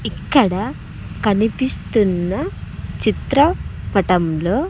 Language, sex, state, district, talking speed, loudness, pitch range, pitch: Telugu, male, Andhra Pradesh, Sri Satya Sai, 40 wpm, -18 LUFS, 180-220 Hz, 195 Hz